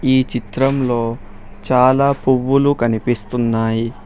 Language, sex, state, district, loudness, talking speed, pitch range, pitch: Telugu, male, Telangana, Hyderabad, -17 LUFS, 75 wpm, 115-130 Hz, 120 Hz